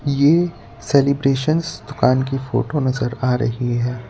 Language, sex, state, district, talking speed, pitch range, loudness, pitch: Hindi, male, Gujarat, Valsad, 130 wpm, 120-140 Hz, -19 LUFS, 130 Hz